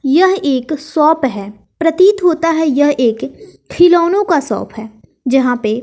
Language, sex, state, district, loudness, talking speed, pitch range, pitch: Hindi, female, Bihar, West Champaran, -13 LUFS, 165 wpm, 245-335 Hz, 300 Hz